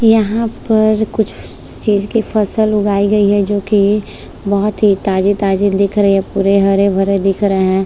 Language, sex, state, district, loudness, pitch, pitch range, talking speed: Hindi, female, Maharashtra, Chandrapur, -14 LUFS, 200 Hz, 195-215 Hz, 175 wpm